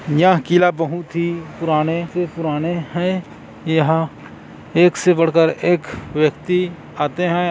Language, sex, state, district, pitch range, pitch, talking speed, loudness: Hindi, male, Chhattisgarh, Korba, 155-175 Hz, 165 Hz, 130 wpm, -18 LUFS